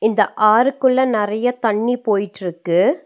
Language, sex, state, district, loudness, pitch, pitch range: Tamil, female, Tamil Nadu, Nilgiris, -17 LUFS, 220 Hz, 205-250 Hz